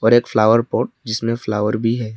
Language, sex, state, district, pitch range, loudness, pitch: Hindi, male, Arunachal Pradesh, Lower Dibang Valley, 110-115 Hz, -18 LUFS, 115 Hz